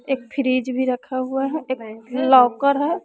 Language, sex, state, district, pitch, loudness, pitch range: Hindi, female, Bihar, West Champaran, 260 Hz, -20 LUFS, 255-275 Hz